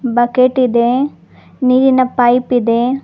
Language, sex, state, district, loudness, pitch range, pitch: Kannada, female, Karnataka, Bangalore, -13 LUFS, 240-260 Hz, 250 Hz